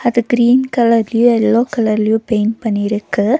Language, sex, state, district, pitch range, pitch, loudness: Tamil, female, Tamil Nadu, Nilgiris, 215-240 Hz, 230 Hz, -14 LUFS